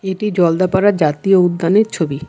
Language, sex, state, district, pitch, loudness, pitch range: Bengali, female, West Bengal, Alipurduar, 185 Hz, -15 LUFS, 165-195 Hz